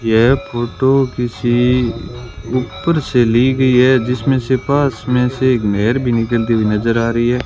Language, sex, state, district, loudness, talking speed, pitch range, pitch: Hindi, male, Rajasthan, Bikaner, -15 LUFS, 175 wpm, 115-130 Hz, 120 Hz